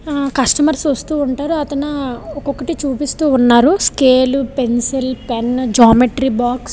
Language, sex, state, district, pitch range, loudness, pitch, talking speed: Telugu, female, Andhra Pradesh, Visakhapatnam, 250-290 Hz, -15 LUFS, 270 Hz, 125 wpm